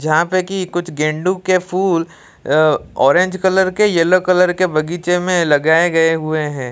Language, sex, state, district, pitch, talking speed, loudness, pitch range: Hindi, male, Odisha, Malkangiri, 175 Hz, 180 wpm, -15 LUFS, 155-185 Hz